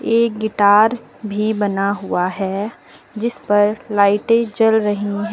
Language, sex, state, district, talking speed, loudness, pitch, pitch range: Hindi, female, Uttar Pradesh, Lucknow, 125 wpm, -17 LUFS, 210 Hz, 205-225 Hz